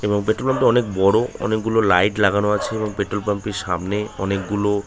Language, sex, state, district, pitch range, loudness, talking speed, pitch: Bengali, male, West Bengal, Kolkata, 100-110 Hz, -20 LUFS, 220 wpm, 105 Hz